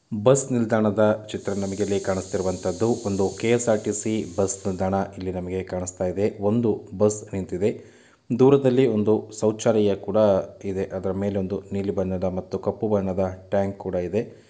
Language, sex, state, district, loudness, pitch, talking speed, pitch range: Kannada, male, Karnataka, Mysore, -24 LUFS, 100 Hz, 135 wpm, 95-110 Hz